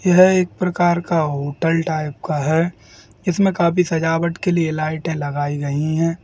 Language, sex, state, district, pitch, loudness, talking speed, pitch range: Hindi, male, Uttar Pradesh, Jalaun, 165 Hz, -19 LUFS, 175 wpm, 150-175 Hz